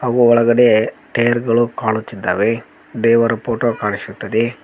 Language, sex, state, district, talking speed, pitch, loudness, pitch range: Kannada, male, Karnataka, Koppal, 105 wpm, 115 Hz, -16 LUFS, 110-120 Hz